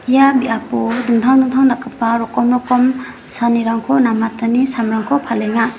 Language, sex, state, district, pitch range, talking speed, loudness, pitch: Garo, female, Meghalaya, West Garo Hills, 230-260 Hz, 115 wpm, -15 LUFS, 240 Hz